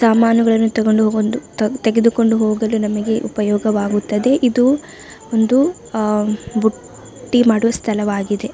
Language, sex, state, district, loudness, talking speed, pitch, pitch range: Kannada, female, Karnataka, Dakshina Kannada, -16 LUFS, 90 wpm, 220 Hz, 215-230 Hz